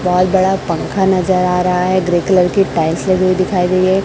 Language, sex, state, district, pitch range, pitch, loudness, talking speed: Hindi, female, Chhattisgarh, Raipur, 180-190 Hz, 185 Hz, -14 LUFS, 235 wpm